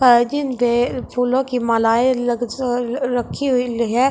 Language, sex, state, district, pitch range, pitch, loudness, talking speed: Hindi, female, Delhi, New Delhi, 240-255 Hz, 245 Hz, -19 LUFS, 175 wpm